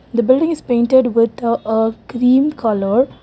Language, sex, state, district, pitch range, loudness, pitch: English, female, Karnataka, Bangalore, 230-260 Hz, -15 LUFS, 240 Hz